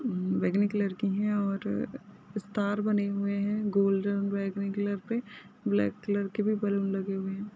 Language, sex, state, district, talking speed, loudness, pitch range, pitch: Hindi, female, Maharashtra, Solapur, 175 wpm, -30 LUFS, 195-210 Hz, 200 Hz